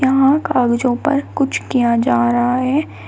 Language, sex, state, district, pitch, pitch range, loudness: Hindi, female, Uttar Pradesh, Shamli, 255 Hz, 235-275 Hz, -16 LUFS